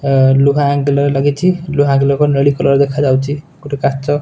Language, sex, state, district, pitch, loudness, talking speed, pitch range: Odia, male, Odisha, Nuapada, 140 Hz, -13 LUFS, 170 wpm, 140-145 Hz